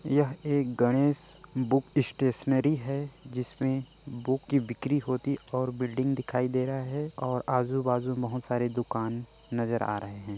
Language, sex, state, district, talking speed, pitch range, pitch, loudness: Chhattisgarhi, male, Chhattisgarh, Korba, 155 wpm, 125-140 Hz, 130 Hz, -30 LUFS